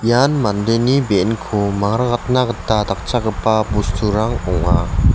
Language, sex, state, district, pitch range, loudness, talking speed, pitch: Garo, male, Meghalaya, West Garo Hills, 100-120 Hz, -17 LUFS, 95 wpm, 110 Hz